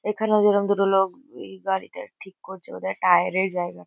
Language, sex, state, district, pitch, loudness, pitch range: Bengali, female, West Bengal, Kolkata, 190 Hz, -22 LUFS, 180-205 Hz